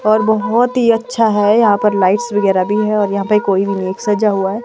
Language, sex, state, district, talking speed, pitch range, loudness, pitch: Hindi, female, Himachal Pradesh, Shimla, 270 wpm, 195-220 Hz, -14 LUFS, 210 Hz